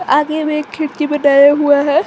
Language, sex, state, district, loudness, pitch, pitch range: Hindi, female, Jharkhand, Garhwa, -13 LUFS, 295 Hz, 285-305 Hz